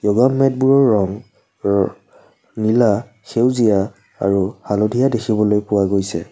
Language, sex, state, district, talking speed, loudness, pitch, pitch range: Assamese, male, Assam, Kamrup Metropolitan, 105 wpm, -17 LUFS, 105 Hz, 100-120 Hz